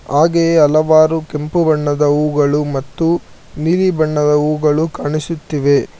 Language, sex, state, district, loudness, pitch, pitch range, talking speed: Kannada, male, Karnataka, Bangalore, -15 LUFS, 150 Hz, 150-160 Hz, 100 wpm